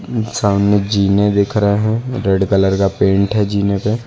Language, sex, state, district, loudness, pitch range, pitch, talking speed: Hindi, male, Uttar Pradesh, Lucknow, -15 LUFS, 100-105 Hz, 100 Hz, 175 wpm